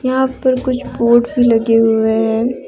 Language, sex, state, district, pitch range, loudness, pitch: Hindi, female, Jharkhand, Deoghar, 225-255 Hz, -14 LUFS, 240 Hz